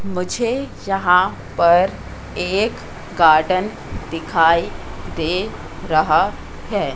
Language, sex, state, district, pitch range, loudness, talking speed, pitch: Hindi, female, Madhya Pradesh, Katni, 155-190 Hz, -18 LUFS, 80 wpm, 170 Hz